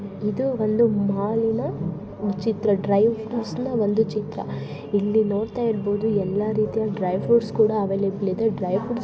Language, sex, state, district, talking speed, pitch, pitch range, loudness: Kannada, female, Karnataka, Dharwad, 140 wpm, 210 Hz, 200-225 Hz, -23 LUFS